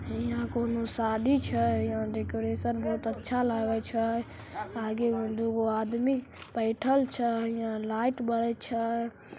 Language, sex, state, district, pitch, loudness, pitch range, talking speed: Maithili, female, Bihar, Samastipur, 225 Hz, -30 LUFS, 220-235 Hz, 135 wpm